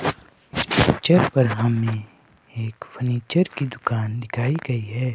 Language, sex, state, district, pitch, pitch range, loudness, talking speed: Hindi, male, Himachal Pradesh, Shimla, 120 Hz, 115-130 Hz, -22 LUFS, 115 wpm